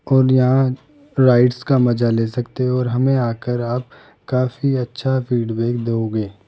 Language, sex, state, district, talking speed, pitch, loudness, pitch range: Hindi, male, Rajasthan, Jaipur, 150 wpm, 125 Hz, -18 LUFS, 120-130 Hz